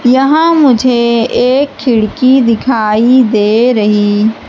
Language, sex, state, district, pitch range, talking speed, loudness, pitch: Hindi, female, Madhya Pradesh, Katni, 220-260 Hz, 95 wpm, -9 LUFS, 245 Hz